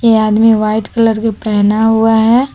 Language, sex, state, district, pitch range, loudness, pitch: Hindi, female, Jharkhand, Palamu, 215-225 Hz, -11 LUFS, 220 Hz